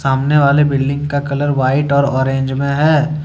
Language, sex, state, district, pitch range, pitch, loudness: Hindi, male, Jharkhand, Deoghar, 135-145 Hz, 140 Hz, -14 LUFS